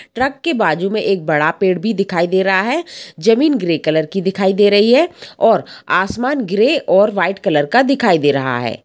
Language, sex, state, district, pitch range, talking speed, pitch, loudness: Hindi, female, Jharkhand, Sahebganj, 170-245 Hz, 215 wpm, 195 Hz, -15 LUFS